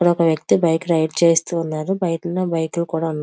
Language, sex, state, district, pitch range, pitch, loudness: Telugu, female, Andhra Pradesh, Visakhapatnam, 160-175 Hz, 165 Hz, -19 LUFS